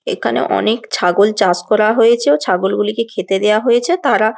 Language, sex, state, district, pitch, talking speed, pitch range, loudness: Bengali, female, West Bengal, Jalpaiguri, 210 Hz, 165 wpm, 190-225 Hz, -14 LUFS